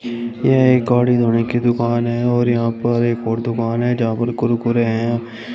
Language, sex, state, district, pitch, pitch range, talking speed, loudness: Hindi, male, Uttar Pradesh, Shamli, 120 Hz, 115-120 Hz, 195 wpm, -17 LUFS